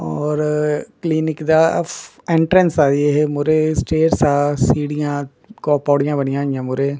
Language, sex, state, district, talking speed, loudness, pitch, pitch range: Punjabi, male, Punjab, Kapurthala, 135 wpm, -17 LUFS, 150 Hz, 145-160 Hz